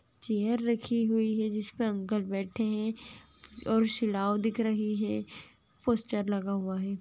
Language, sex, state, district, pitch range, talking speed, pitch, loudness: Hindi, female, Andhra Pradesh, Chittoor, 200-225 Hz, 145 wpm, 215 Hz, -31 LUFS